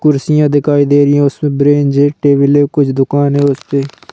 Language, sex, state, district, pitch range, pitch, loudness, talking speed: Hindi, male, Madhya Pradesh, Bhopal, 140-145 Hz, 145 Hz, -11 LUFS, 230 wpm